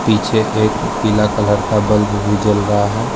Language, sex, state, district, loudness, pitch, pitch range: Hindi, male, Arunachal Pradesh, Lower Dibang Valley, -15 LUFS, 105 Hz, 105-110 Hz